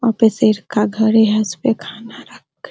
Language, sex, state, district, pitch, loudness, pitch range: Hindi, female, Bihar, Araria, 220 Hz, -16 LUFS, 210-225 Hz